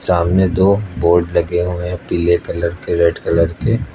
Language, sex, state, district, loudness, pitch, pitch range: Hindi, male, Uttar Pradesh, Lucknow, -16 LUFS, 85 Hz, 85-90 Hz